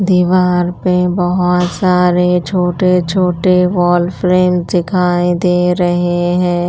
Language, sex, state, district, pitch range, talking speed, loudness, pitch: Hindi, female, Punjab, Pathankot, 175-180 Hz, 105 wpm, -13 LUFS, 180 Hz